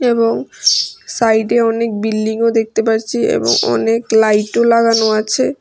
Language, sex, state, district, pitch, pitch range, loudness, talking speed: Bengali, female, Tripura, West Tripura, 225 Hz, 220-230 Hz, -14 LUFS, 120 wpm